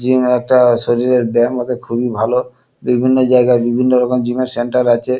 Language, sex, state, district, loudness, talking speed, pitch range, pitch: Bengali, male, West Bengal, Kolkata, -14 LUFS, 175 wpm, 120-125 Hz, 125 Hz